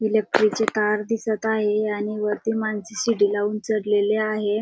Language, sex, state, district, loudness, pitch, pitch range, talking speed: Marathi, female, Maharashtra, Dhule, -22 LUFS, 215 Hz, 210-220 Hz, 155 wpm